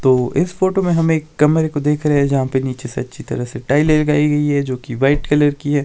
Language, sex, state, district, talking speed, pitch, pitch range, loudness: Hindi, male, Himachal Pradesh, Shimla, 255 wpm, 145 Hz, 135-150 Hz, -17 LUFS